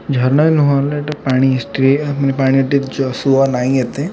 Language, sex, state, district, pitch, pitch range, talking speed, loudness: Odia, male, Odisha, Khordha, 135 Hz, 130-145 Hz, 160 wpm, -15 LUFS